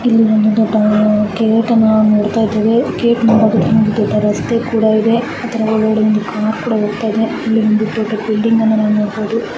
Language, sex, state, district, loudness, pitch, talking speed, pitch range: Kannada, female, Karnataka, Mysore, -13 LUFS, 220 Hz, 140 wpm, 215-225 Hz